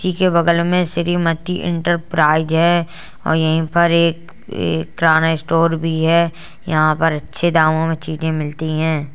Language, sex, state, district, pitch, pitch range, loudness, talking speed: Hindi, female, Uttar Pradesh, Jalaun, 165 Hz, 160-170 Hz, -17 LUFS, 145 wpm